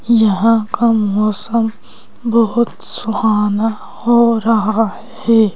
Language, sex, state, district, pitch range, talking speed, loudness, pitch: Hindi, female, Madhya Pradesh, Bhopal, 215-230 Hz, 85 wpm, -15 LUFS, 225 Hz